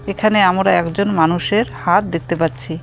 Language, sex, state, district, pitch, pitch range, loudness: Bengali, female, West Bengal, Cooch Behar, 175 Hz, 165-200 Hz, -16 LUFS